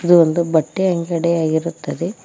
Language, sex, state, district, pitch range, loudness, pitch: Kannada, female, Karnataka, Koppal, 160-175 Hz, -18 LUFS, 170 Hz